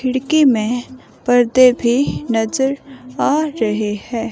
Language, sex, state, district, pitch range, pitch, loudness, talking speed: Hindi, female, Himachal Pradesh, Shimla, 230-265 Hz, 250 Hz, -16 LUFS, 110 wpm